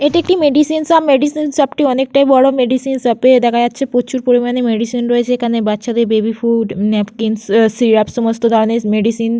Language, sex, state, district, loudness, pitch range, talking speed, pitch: Bengali, female, West Bengal, Jhargram, -13 LUFS, 225-270 Hz, 190 wpm, 240 Hz